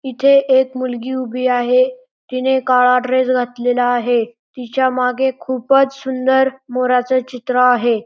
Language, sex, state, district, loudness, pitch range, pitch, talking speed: Marathi, male, Maharashtra, Pune, -16 LUFS, 245-265 Hz, 255 Hz, 125 wpm